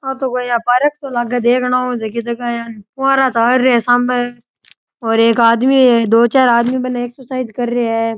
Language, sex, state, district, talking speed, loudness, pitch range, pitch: Rajasthani, male, Rajasthan, Churu, 205 wpm, -14 LUFS, 235-255 Hz, 245 Hz